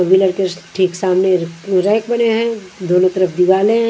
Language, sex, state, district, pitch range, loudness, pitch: Hindi, female, Punjab, Kapurthala, 185-210 Hz, -15 LUFS, 190 Hz